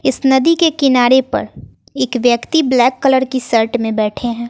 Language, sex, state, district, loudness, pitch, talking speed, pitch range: Hindi, female, Bihar, West Champaran, -14 LUFS, 255 Hz, 185 wpm, 240-270 Hz